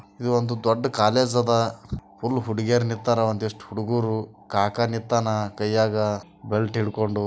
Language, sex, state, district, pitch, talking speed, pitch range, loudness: Kannada, male, Karnataka, Bijapur, 110 Hz, 125 wpm, 105-120 Hz, -24 LUFS